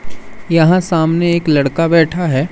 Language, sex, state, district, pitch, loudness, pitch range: Hindi, male, Madhya Pradesh, Umaria, 165 Hz, -13 LUFS, 160-175 Hz